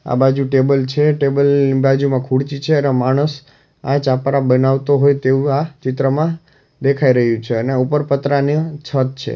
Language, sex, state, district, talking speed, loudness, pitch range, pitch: Gujarati, male, Gujarat, Valsad, 165 wpm, -16 LUFS, 130-145 Hz, 140 Hz